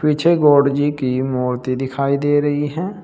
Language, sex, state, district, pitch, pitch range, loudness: Hindi, male, Uttar Pradesh, Saharanpur, 145 Hz, 130-150 Hz, -17 LUFS